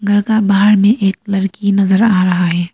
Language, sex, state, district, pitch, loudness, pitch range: Hindi, female, Arunachal Pradesh, Lower Dibang Valley, 200 Hz, -13 LUFS, 190-205 Hz